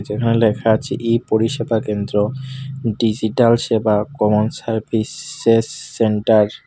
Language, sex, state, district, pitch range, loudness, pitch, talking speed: Bengali, male, Tripura, Unakoti, 110-115 Hz, -18 LUFS, 115 Hz, 110 wpm